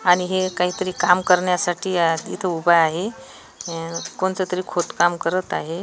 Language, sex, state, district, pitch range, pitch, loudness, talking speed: Marathi, female, Maharashtra, Washim, 170-185 Hz, 180 Hz, -21 LUFS, 135 wpm